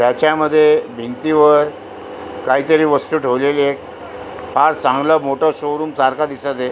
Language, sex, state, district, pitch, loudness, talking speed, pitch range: Marathi, male, Maharashtra, Aurangabad, 145 Hz, -15 LUFS, 125 wpm, 130-155 Hz